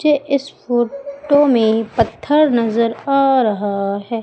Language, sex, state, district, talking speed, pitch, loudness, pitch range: Hindi, female, Madhya Pradesh, Umaria, 130 wpm, 245 Hz, -16 LUFS, 225-280 Hz